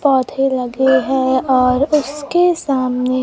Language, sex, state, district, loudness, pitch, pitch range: Hindi, female, Bihar, Kaimur, -15 LUFS, 265 Hz, 255-285 Hz